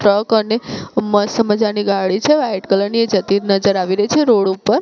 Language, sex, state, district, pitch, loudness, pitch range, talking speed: Gujarati, female, Gujarat, Gandhinagar, 205 Hz, -16 LUFS, 195-225 Hz, 210 wpm